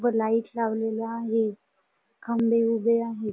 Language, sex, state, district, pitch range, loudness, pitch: Marathi, female, Maharashtra, Dhule, 220-230 Hz, -26 LUFS, 225 Hz